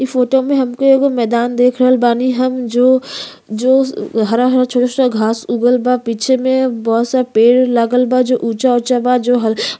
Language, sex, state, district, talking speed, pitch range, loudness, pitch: Bhojpuri, female, Uttar Pradesh, Gorakhpur, 200 wpm, 235-255 Hz, -13 LUFS, 250 Hz